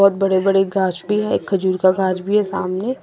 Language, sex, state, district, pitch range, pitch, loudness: Hindi, female, Assam, Sonitpur, 185-200 Hz, 195 Hz, -18 LUFS